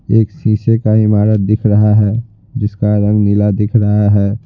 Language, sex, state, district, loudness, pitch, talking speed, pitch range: Hindi, male, Bihar, Patna, -13 LUFS, 105 Hz, 175 wpm, 105-110 Hz